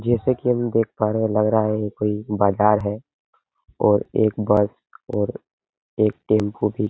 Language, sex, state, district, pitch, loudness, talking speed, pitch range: Hindi, male, Uttar Pradesh, Hamirpur, 105 Hz, -21 LUFS, 185 wpm, 105-110 Hz